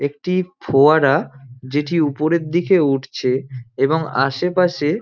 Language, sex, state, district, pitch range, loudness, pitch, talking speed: Bengali, male, West Bengal, Dakshin Dinajpur, 135-170 Hz, -18 LUFS, 145 Hz, 110 wpm